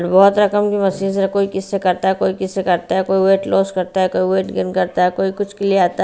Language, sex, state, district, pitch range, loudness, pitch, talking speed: Hindi, female, Bihar, Patna, 185-195 Hz, -17 LUFS, 190 Hz, 310 wpm